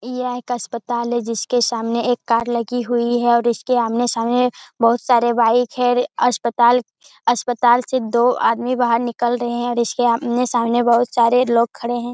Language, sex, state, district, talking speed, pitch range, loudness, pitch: Hindi, female, Bihar, Jamui, 180 wpm, 235-245 Hz, -18 LUFS, 240 Hz